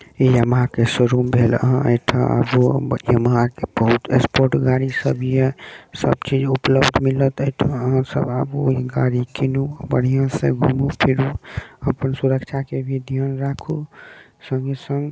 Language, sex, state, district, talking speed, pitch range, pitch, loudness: Maithili, male, Bihar, Saharsa, 150 wpm, 125-135 Hz, 130 Hz, -19 LUFS